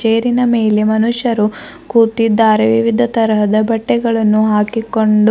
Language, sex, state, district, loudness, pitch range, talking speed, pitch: Kannada, female, Karnataka, Bidar, -13 LUFS, 215-230 Hz, 90 wpm, 225 Hz